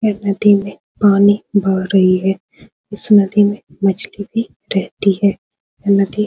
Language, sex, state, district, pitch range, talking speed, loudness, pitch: Hindi, female, Bihar, Supaul, 195-205 Hz, 170 wpm, -15 LUFS, 200 Hz